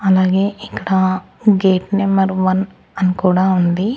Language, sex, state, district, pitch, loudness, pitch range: Telugu, male, Andhra Pradesh, Annamaya, 190 Hz, -16 LUFS, 185-200 Hz